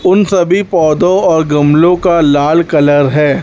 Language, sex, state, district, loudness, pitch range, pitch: Hindi, male, Chhattisgarh, Raipur, -10 LUFS, 150-180 Hz, 160 Hz